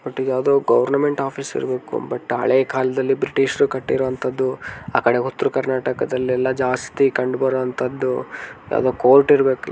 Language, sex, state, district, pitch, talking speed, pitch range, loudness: Kannada, male, Karnataka, Dharwad, 130 Hz, 115 wpm, 130-135 Hz, -19 LUFS